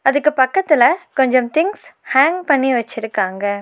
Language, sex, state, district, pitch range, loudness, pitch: Tamil, female, Tamil Nadu, Nilgiris, 225-300 Hz, -16 LUFS, 265 Hz